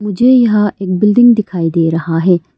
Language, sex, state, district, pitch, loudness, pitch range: Hindi, female, Arunachal Pradesh, Longding, 200 Hz, -11 LUFS, 170-215 Hz